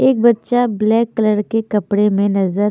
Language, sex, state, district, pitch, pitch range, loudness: Hindi, female, Haryana, Charkhi Dadri, 215 Hz, 205-230 Hz, -16 LUFS